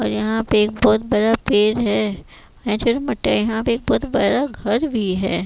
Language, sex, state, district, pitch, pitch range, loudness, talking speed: Hindi, female, Chhattisgarh, Raipur, 220 Hz, 210-230 Hz, -18 LUFS, 165 wpm